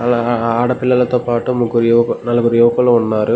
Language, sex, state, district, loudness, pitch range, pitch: Telugu, male, Andhra Pradesh, Guntur, -14 LUFS, 115-125 Hz, 120 Hz